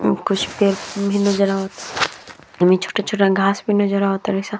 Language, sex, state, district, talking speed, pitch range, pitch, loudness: Bhojpuri, female, Uttar Pradesh, Deoria, 155 wpm, 195-200 Hz, 200 Hz, -19 LUFS